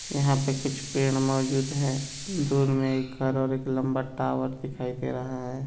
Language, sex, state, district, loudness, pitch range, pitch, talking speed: Hindi, male, Bihar, East Champaran, -27 LUFS, 130-135 Hz, 135 Hz, 190 wpm